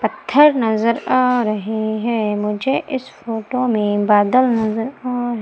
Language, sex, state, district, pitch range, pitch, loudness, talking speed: Hindi, female, Madhya Pradesh, Umaria, 215-255 Hz, 230 Hz, -18 LUFS, 135 wpm